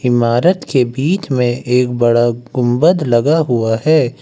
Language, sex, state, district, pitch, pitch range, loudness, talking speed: Hindi, male, Uttar Pradesh, Lucknow, 125 Hz, 120-150 Hz, -14 LUFS, 140 wpm